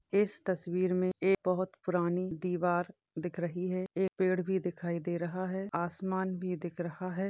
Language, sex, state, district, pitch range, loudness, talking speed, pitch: Hindi, female, Maharashtra, Sindhudurg, 175-185 Hz, -33 LUFS, 190 wpm, 185 Hz